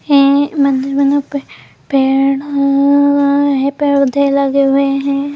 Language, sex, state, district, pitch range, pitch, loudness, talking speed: Hindi, female, Bihar, Saharsa, 275-285 Hz, 280 Hz, -13 LUFS, 135 wpm